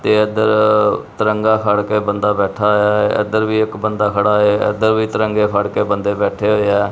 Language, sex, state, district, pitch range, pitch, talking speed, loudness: Punjabi, male, Punjab, Kapurthala, 105-110 Hz, 105 Hz, 190 wpm, -15 LUFS